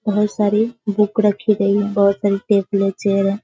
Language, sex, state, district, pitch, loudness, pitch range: Hindi, female, Bihar, Sitamarhi, 205 Hz, -17 LUFS, 200-210 Hz